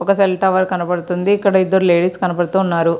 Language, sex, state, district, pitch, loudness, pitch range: Telugu, female, Andhra Pradesh, Srikakulam, 185 Hz, -16 LUFS, 175-190 Hz